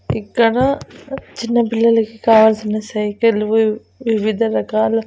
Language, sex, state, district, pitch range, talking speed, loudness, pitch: Telugu, female, Andhra Pradesh, Annamaya, 215-230 Hz, 95 wpm, -16 LUFS, 225 Hz